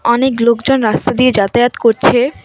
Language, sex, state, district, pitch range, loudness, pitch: Bengali, female, West Bengal, Cooch Behar, 235-255 Hz, -12 LUFS, 240 Hz